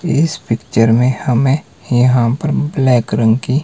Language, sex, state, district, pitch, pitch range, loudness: Hindi, male, Himachal Pradesh, Shimla, 125 Hz, 115-145 Hz, -14 LUFS